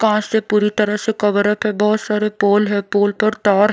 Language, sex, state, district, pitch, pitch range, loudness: Hindi, female, Odisha, Khordha, 210 Hz, 205-215 Hz, -17 LUFS